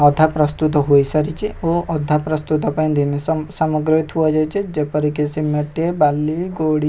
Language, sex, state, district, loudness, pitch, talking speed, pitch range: Odia, male, Odisha, Khordha, -18 LUFS, 155 Hz, 150 wpm, 150-160 Hz